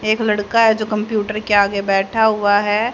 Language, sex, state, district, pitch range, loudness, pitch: Hindi, female, Haryana, Rohtak, 205-220 Hz, -16 LUFS, 215 Hz